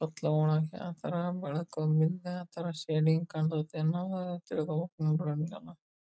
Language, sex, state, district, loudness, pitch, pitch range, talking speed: Kannada, male, Karnataka, Belgaum, -32 LUFS, 160 Hz, 155-175 Hz, 120 wpm